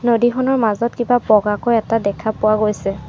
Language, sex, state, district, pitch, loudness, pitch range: Assamese, female, Assam, Sonitpur, 220 Hz, -17 LUFS, 210-240 Hz